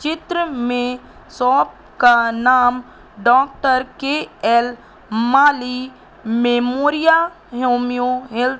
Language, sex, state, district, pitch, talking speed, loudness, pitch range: Hindi, female, Madhya Pradesh, Katni, 250 Hz, 85 wpm, -17 LUFS, 245-280 Hz